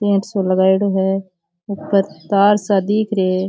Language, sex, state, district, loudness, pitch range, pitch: Rajasthani, male, Rajasthan, Churu, -17 LUFS, 190-200 Hz, 195 Hz